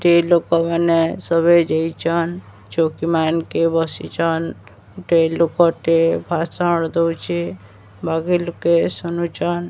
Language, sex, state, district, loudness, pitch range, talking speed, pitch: Odia, male, Odisha, Sambalpur, -18 LUFS, 160-170 Hz, 95 wpm, 165 Hz